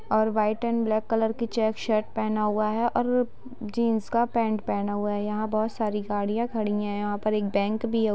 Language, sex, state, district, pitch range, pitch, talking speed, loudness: Hindi, female, Bihar, Sitamarhi, 210-230 Hz, 215 Hz, 235 wpm, -26 LUFS